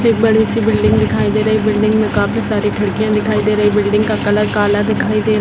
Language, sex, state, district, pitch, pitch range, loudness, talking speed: Hindi, female, Bihar, Jamui, 215 Hz, 205-215 Hz, -14 LUFS, 265 wpm